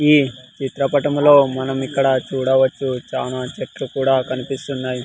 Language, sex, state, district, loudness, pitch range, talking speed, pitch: Telugu, male, Andhra Pradesh, Sri Satya Sai, -19 LUFS, 130-140 Hz, 105 wpm, 135 Hz